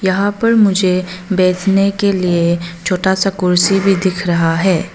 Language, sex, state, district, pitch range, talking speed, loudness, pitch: Hindi, female, Arunachal Pradesh, Longding, 180-195 Hz, 155 wpm, -14 LUFS, 185 Hz